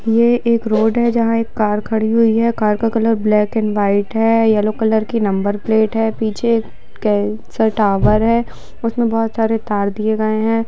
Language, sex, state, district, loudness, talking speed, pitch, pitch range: Hindi, female, Jharkhand, Jamtara, -16 LUFS, 185 wpm, 220 Hz, 215-230 Hz